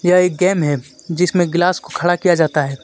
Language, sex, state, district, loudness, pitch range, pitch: Hindi, male, Jharkhand, Deoghar, -16 LUFS, 155-180 Hz, 175 Hz